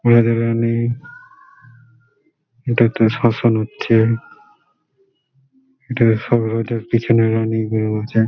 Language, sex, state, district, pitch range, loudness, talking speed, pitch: Bengali, male, West Bengal, Malda, 115-130 Hz, -17 LUFS, 60 wpm, 115 Hz